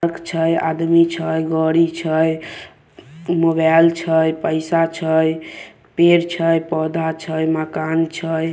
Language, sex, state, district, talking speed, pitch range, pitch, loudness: Maithili, male, Bihar, Samastipur, 110 wpm, 160-165 Hz, 160 Hz, -18 LUFS